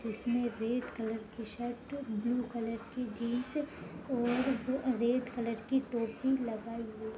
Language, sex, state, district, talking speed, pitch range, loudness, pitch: Hindi, female, Uttar Pradesh, Jalaun, 140 wpm, 225-250 Hz, -35 LUFS, 240 Hz